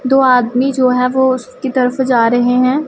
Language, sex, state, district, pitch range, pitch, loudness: Hindi, female, Punjab, Pathankot, 250-265 Hz, 255 Hz, -13 LUFS